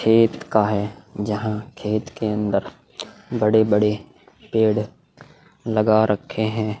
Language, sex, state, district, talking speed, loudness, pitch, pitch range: Hindi, male, Goa, North and South Goa, 115 wpm, -21 LUFS, 110 Hz, 105-110 Hz